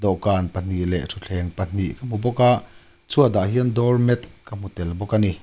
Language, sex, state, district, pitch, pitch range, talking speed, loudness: Mizo, male, Mizoram, Aizawl, 100 Hz, 90-120 Hz, 200 wpm, -21 LUFS